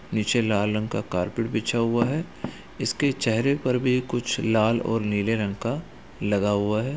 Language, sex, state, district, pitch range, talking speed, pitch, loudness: Hindi, male, Bihar, Gaya, 105-120 Hz, 180 wpm, 115 Hz, -25 LUFS